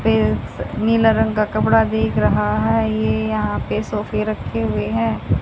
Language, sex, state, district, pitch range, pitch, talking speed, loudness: Hindi, female, Haryana, Charkhi Dadri, 105-115 Hz, 110 Hz, 155 wpm, -19 LUFS